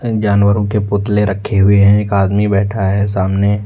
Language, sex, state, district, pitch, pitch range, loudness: Hindi, male, Uttar Pradesh, Lucknow, 100 Hz, 100-105 Hz, -13 LUFS